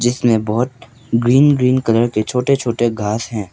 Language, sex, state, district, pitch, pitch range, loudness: Hindi, male, Arunachal Pradesh, Papum Pare, 120 Hz, 110-125 Hz, -16 LUFS